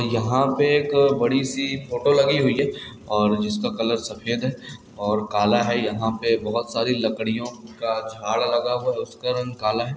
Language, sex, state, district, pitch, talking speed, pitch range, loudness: Hindi, male, Chhattisgarh, Balrampur, 120 Hz, 180 wpm, 110-130 Hz, -22 LUFS